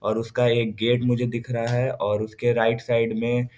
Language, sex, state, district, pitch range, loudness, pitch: Hindi, male, Bihar, East Champaran, 115-120 Hz, -23 LUFS, 120 Hz